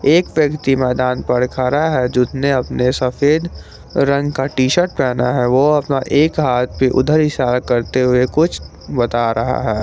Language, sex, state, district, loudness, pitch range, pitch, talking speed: Hindi, male, Jharkhand, Garhwa, -16 LUFS, 125-145 Hz, 130 Hz, 170 wpm